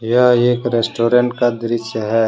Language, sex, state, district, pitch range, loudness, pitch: Hindi, male, Jharkhand, Deoghar, 115-125 Hz, -16 LUFS, 120 Hz